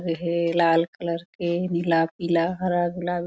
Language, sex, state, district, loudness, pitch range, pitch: Chhattisgarhi, female, Chhattisgarh, Korba, -24 LUFS, 170-175 Hz, 170 Hz